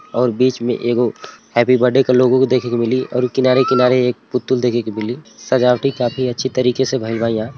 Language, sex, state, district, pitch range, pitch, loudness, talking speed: Bhojpuri, male, Uttar Pradesh, Ghazipur, 120-130 Hz, 125 Hz, -16 LUFS, 215 wpm